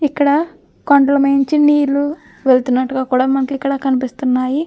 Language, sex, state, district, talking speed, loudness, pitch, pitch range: Telugu, female, Andhra Pradesh, Krishna, 130 wpm, -15 LUFS, 275 Hz, 260-290 Hz